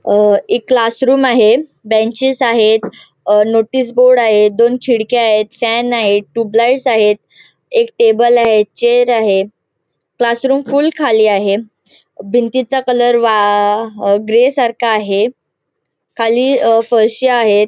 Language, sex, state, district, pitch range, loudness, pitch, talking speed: Marathi, female, Goa, North and South Goa, 215-250 Hz, -12 LUFS, 230 Hz, 125 wpm